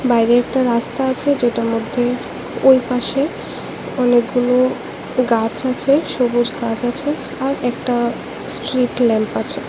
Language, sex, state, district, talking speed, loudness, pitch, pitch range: Bengali, male, Tripura, West Tripura, 120 wpm, -18 LUFS, 245 Hz, 240-260 Hz